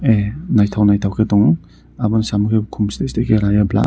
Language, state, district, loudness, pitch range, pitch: Kokborok, Tripura, Dhalai, -16 LUFS, 100-110 Hz, 105 Hz